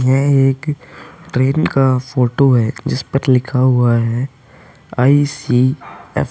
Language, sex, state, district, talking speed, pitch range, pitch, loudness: Hindi, male, Uttar Pradesh, Hamirpur, 125 wpm, 125-140 Hz, 130 Hz, -15 LUFS